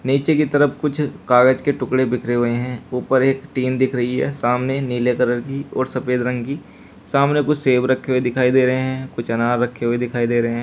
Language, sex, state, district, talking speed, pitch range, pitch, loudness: Hindi, male, Uttar Pradesh, Shamli, 230 wpm, 120-135 Hz, 130 Hz, -19 LUFS